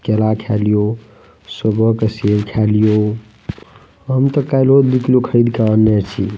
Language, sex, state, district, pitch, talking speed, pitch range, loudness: Maithili, male, Bihar, Madhepura, 110 Hz, 140 wpm, 105-120 Hz, -15 LUFS